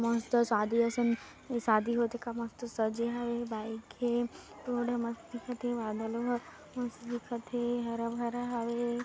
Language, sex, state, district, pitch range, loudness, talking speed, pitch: Hindi, female, Chhattisgarh, Kabirdham, 230-240 Hz, -34 LUFS, 150 wpm, 235 Hz